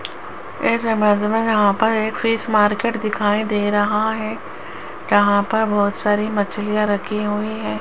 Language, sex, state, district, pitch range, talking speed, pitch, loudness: Hindi, female, Rajasthan, Jaipur, 205-220 Hz, 155 wpm, 210 Hz, -19 LUFS